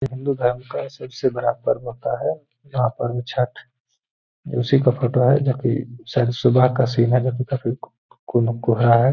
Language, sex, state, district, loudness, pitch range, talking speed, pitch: Hindi, male, Bihar, Gaya, -21 LUFS, 120-130 Hz, 190 wpm, 125 Hz